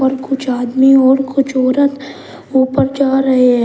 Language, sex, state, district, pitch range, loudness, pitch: Hindi, male, Uttar Pradesh, Shamli, 260-270 Hz, -13 LUFS, 265 Hz